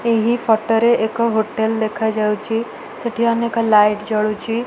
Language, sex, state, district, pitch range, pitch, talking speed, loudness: Odia, female, Odisha, Malkangiri, 220-230 Hz, 225 Hz, 140 wpm, -18 LUFS